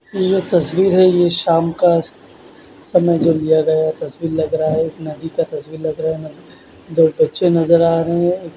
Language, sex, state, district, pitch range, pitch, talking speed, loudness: Hindi, male, Odisha, Khordha, 160-175 Hz, 165 Hz, 155 wpm, -16 LUFS